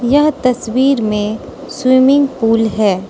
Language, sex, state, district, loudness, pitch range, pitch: Hindi, female, Mizoram, Aizawl, -13 LUFS, 220-270 Hz, 250 Hz